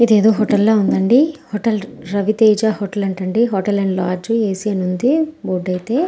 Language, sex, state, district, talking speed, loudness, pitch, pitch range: Telugu, female, Andhra Pradesh, Anantapur, 140 wpm, -17 LUFS, 210 Hz, 190-230 Hz